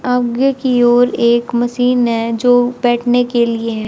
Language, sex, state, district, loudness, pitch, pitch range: Hindi, female, Haryana, Jhajjar, -14 LUFS, 245 Hz, 235-245 Hz